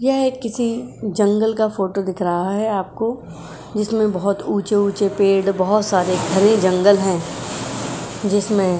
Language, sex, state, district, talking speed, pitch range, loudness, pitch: Hindi, female, Uttar Pradesh, Jyotiba Phule Nagar, 135 wpm, 190-215 Hz, -19 LUFS, 200 Hz